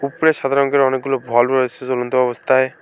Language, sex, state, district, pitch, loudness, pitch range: Bengali, male, West Bengal, Alipurduar, 130 Hz, -17 LUFS, 125-140 Hz